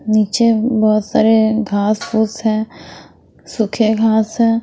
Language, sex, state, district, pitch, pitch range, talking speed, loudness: Hindi, female, Himachal Pradesh, Shimla, 220 Hz, 215-225 Hz, 115 wpm, -15 LUFS